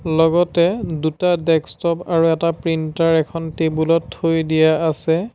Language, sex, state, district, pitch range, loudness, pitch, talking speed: Assamese, male, Assam, Sonitpur, 160-170 Hz, -18 LUFS, 165 Hz, 135 wpm